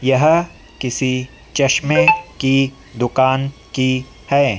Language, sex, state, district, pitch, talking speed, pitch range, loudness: Hindi, female, Madhya Pradesh, Dhar, 135 Hz, 90 wpm, 130-140 Hz, -17 LUFS